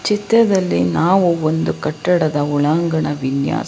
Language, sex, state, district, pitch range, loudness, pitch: Kannada, female, Karnataka, Belgaum, 145-180 Hz, -16 LUFS, 160 Hz